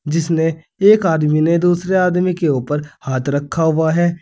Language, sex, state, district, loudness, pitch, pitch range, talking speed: Hindi, male, Uttar Pradesh, Saharanpur, -16 LUFS, 165 Hz, 150-175 Hz, 170 wpm